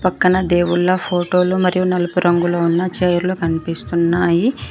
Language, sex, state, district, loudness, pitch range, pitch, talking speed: Telugu, female, Telangana, Mahabubabad, -17 LUFS, 175-185 Hz, 175 Hz, 125 wpm